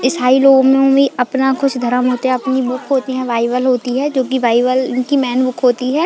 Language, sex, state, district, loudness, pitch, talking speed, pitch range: Hindi, female, Chhattisgarh, Bilaspur, -14 LUFS, 255 Hz, 235 wpm, 250-265 Hz